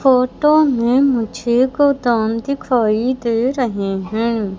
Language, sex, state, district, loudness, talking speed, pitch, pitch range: Hindi, female, Madhya Pradesh, Katni, -16 LUFS, 105 wpm, 245 Hz, 225-265 Hz